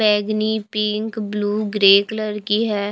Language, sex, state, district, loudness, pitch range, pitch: Hindi, female, Chhattisgarh, Raipur, -19 LUFS, 205-215 Hz, 210 Hz